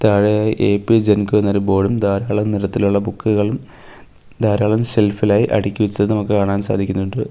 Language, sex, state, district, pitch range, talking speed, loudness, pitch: Malayalam, male, Kerala, Kollam, 100-110 Hz, 130 wpm, -17 LUFS, 105 Hz